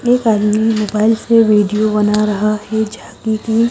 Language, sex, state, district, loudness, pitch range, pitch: Hindi, female, Haryana, Charkhi Dadri, -14 LUFS, 210-225 Hz, 215 Hz